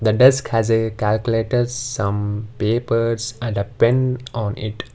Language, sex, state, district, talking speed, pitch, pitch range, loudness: English, male, Karnataka, Bangalore, 145 wpm, 115 Hz, 110-120 Hz, -20 LUFS